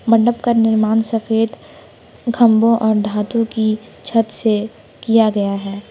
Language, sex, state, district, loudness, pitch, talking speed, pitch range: Hindi, female, Jharkhand, Palamu, -16 LUFS, 225 Hz, 130 wpm, 215-230 Hz